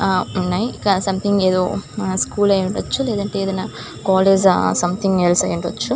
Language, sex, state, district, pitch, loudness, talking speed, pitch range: Telugu, female, Andhra Pradesh, Chittoor, 195 Hz, -18 LUFS, 100 wpm, 185-200 Hz